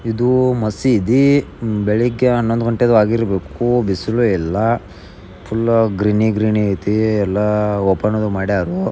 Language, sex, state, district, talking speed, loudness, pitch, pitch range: Kannada, male, Karnataka, Belgaum, 110 wpm, -16 LUFS, 110 Hz, 105-120 Hz